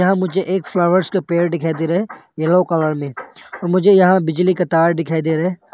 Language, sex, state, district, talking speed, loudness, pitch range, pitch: Hindi, male, Arunachal Pradesh, Longding, 250 wpm, -17 LUFS, 165-185 Hz, 175 Hz